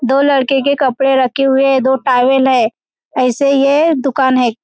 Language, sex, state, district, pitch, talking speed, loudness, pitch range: Hindi, male, Maharashtra, Chandrapur, 270 Hz, 180 wpm, -12 LUFS, 260-275 Hz